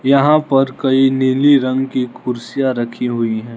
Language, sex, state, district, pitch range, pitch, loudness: Hindi, male, Arunachal Pradesh, Lower Dibang Valley, 125-135 Hz, 130 Hz, -15 LUFS